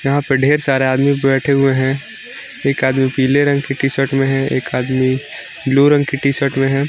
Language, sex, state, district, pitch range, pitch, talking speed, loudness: Hindi, male, Jharkhand, Garhwa, 135-140 Hz, 135 Hz, 225 wpm, -15 LUFS